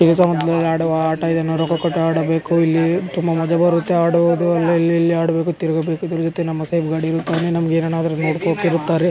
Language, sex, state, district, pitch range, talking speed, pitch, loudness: Kannada, male, Karnataka, Raichur, 165-170 Hz, 180 wpm, 165 Hz, -18 LUFS